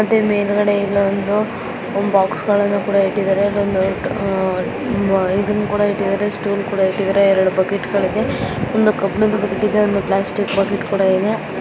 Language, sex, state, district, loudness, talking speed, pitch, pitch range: Kannada, female, Karnataka, Belgaum, -17 LUFS, 130 wpm, 200 Hz, 195-205 Hz